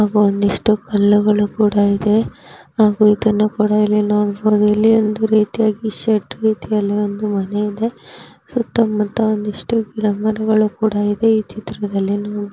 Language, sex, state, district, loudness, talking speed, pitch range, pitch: Kannada, female, Karnataka, Raichur, -17 LUFS, 135 wpm, 205-220 Hz, 210 Hz